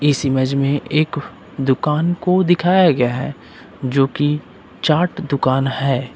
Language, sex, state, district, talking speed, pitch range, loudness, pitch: Hindi, male, Uttar Pradesh, Lucknow, 135 wpm, 135-165 Hz, -18 LUFS, 145 Hz